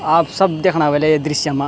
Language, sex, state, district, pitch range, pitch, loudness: Garhwali, male, Uttarakhand, Tehri Garhwal, 150-165 Hz, 155 Hz, -16 LUFS